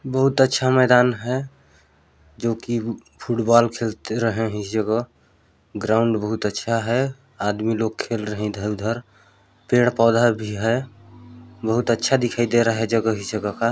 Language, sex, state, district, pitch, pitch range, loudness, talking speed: Chhattisgarhi, male, Chhattisgarh, Balrampur, 115 Hz, 105-120 Hz, -21 LUFS, 160 wpm